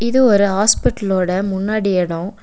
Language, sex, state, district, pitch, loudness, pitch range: Tamil, female, Tamil Nadu, Nilgiris, 200 Hz, -16 LUFS, 185-210 Hz